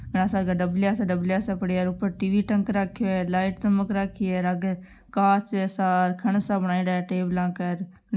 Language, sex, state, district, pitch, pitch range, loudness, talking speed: Marwari, female, Rajasthan, Nagaur, 190 Hz, 180-200 Hz, -25 LUFS, 190 wpm